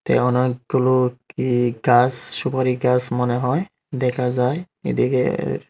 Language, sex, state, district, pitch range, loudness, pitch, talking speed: Bengali, male, Tripura, Unakoti, 125-130 Hz, -20 LUFS, 125 Hz, 115 wpm